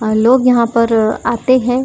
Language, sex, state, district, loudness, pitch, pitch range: Hindi, female, Maharashtra, Chandrapur, -13 LUFS, 235 Hz, 225-250 Hz